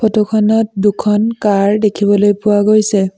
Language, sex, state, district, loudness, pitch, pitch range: Assamese, female, Assam, Sonitpur, -13 LUFS, 210 Hz, 205-215 Hz